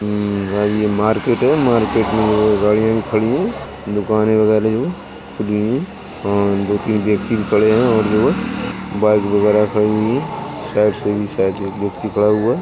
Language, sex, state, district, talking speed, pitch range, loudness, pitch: Hindi, male, Uttar Pradesh, Budaun, 175 wpm, 105-110 Hz, -17 LUFS, 105 Hz